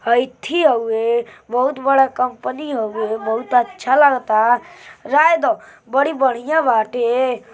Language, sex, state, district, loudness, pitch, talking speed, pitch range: Bhojpuri, male, Uttar Pradesh, Gorakhpur, -17 LUFS, 250 Hz, 120 wpm, 230-275 Hz